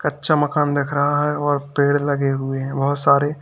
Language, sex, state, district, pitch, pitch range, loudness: Hindi, male, Uttar Pradesh, Lalitpur, 145 Hz, 140-145 Hz, -19 LUFS